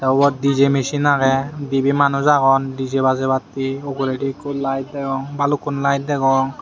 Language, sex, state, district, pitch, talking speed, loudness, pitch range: Chakma, male, Tripura, Unakoti, 135 Hz, 145 wpm, -18 LUFS, 135-140 Hz